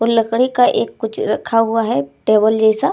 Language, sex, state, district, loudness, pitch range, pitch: Hindi, female, Bihar, Darbhanga, -16 LUFS, 220-235 Hz, 225 Hz